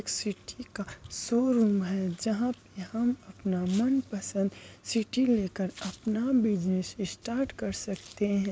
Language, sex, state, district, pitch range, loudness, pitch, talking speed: Hindi, male, Bihar, Bhagalpur, 195-240 Hz, -30 LUFS, 205 Hz, 125 wpm